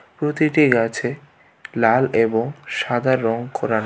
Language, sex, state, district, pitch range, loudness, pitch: Bengali, male, Tripura, West Tripura, 115-145 Hz, -19 LUFS, 120 Hz